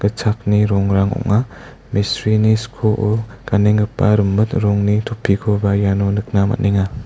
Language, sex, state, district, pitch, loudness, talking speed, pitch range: Garo, male, Meghalaya, West Garo Hills, 105 Hz, -17 LUFS, 100 wpm, 100-110 Hz